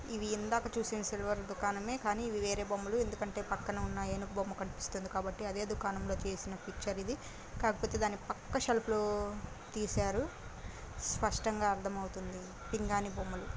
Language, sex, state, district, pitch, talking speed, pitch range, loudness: Telugu, female, Andhra Pradesh, Guntur, 205 Hz, 135 wpm, 195-215 Hz, -37 LUFS